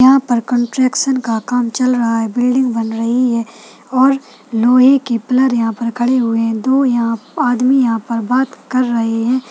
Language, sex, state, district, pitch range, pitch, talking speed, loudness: Hindi, female, Chhattisgarh, Balrampur, 230-255 Hz, 245 Hz, 190 wpm, -15 LUFS